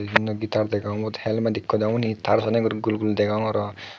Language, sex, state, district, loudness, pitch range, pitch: Chakma, male, Tripura, Unakoti, -24 LUFS, 105-110 Hz, 110 Hz